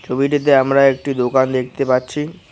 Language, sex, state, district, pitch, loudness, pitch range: Bengali, male, West Bengal, Cooch Behar, 135 Hz, -16 LUFS, 130-145 Hz